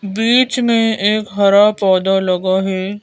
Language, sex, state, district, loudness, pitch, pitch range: Hindi, female, Madhya Pradesh, Bhopal, -14 LUFS, 205 Hz, 190-220 Hz